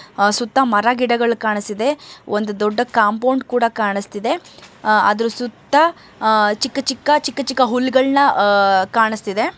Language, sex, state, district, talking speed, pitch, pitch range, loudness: Kannada, male, Karnataka, Mysore, 115 wpm, 235 Hz, 210-265 Hz, -17 LUFS